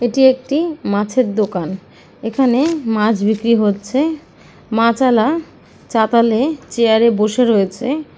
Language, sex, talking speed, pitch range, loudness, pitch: Awadhi, female, 105 wpm, 215-265 Hz, -16 LUFS, 235 Hz